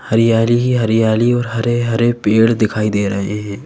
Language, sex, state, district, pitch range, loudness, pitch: Hindi, female, Madhya Pradesh, Bhopal, 105-120 Hz, -15 LUFS, 115 Hz